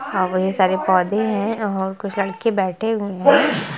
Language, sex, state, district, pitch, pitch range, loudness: Hindi, female, Jharkhand, Jamtara, 195 Hz, 185-220 Hz, -19 LUFS